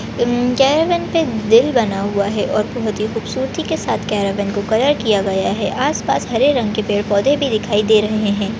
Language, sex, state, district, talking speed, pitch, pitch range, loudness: Hindi, female, Maharashtra, Sindhudurg, 200 wpm, 215 Hz, 205-250 Hz, -17 LUFS